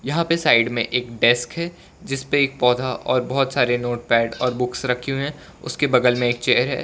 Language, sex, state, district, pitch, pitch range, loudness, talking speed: Hindi, male, Gujarat, Valsad, 125 Hz, 120-140 Hz, -20 LUFS, 220 wpm